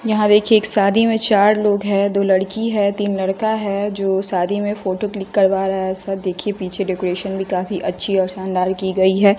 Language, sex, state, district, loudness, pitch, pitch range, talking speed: Hindi, female, Bihar, West Champaran, -17 LUFS, 195 Hz, 190-205 Hz, 215 wpm